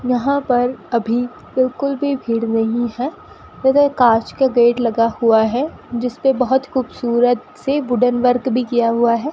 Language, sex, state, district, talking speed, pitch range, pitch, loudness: Hindi, female, Rajasthan, Bikaner, 160 wpm, 235-265 Hz, 245 Hz, -17 LUFS